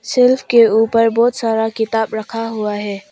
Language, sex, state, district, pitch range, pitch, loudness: Hindi, female, Arunachal Pradesh, Papum Pare, 220-230 Hz, 225 Hz, -15 LUFS